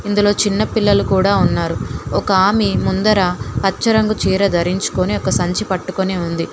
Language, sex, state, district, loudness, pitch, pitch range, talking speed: Telugu, female, Telangana, Hyderabad, -16 LUFS, 195 Hz, 185-205 Hz, 145 wpm